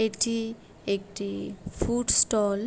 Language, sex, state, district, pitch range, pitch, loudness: Bengali, female, West Bengal, Jalpaiguri, 200-225 Hz, 215 Hz, -27 LUFS